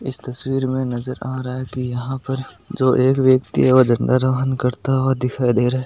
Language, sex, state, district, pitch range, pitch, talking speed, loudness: Hindi, male, Rajasthan, Nagaur, 125-130 Hz, 130 Hz, 235 wpm, -19 LUFS